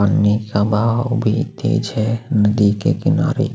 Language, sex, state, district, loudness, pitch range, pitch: Hindi, male, Maharashtra, Aurangabad, -17 LUFS, 105-125 Hz, 110 Hz